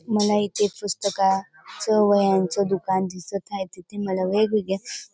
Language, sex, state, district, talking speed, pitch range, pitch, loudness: Marathi, female, Maharashtra, Dhule, 130 wpm, 190-205 Hz, 200 Hz, -23 LUFS